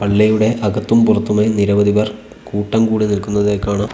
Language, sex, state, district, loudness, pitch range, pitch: Malayalam, male, Kerala, Kollam, -15 LUFS, 105-110 Hz, 105 Hz